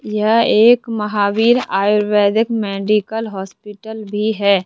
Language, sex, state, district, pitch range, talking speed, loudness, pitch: Hindi, male, Rajasthan, Jaipur, 205-225 Hz, 105 wpm, -15 LUFS, 215 Hz